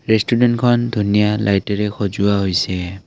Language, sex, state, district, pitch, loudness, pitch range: Assamese, male, Assam, Kamrup Metropolitan, 105 Hz, -17 LUFS, 100-115 Hz